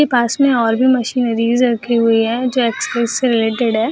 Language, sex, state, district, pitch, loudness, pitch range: Hindi, female, Bihar, Jahanabad, 235 Hz, -15 LUFS, 230-250 Hz